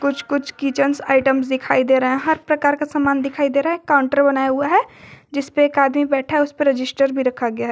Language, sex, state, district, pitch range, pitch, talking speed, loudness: Hindi, female, Jharkhand, Garhwa, 265-285 Hz, 280 Hz, 255 wpm, -18 LUFS